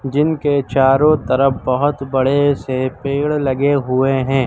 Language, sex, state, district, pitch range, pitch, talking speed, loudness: Hindi, male, Uttar Pradesh, Lucknow, 130-145 Hz, 135 Hz, 135 wpm, -16 LUFS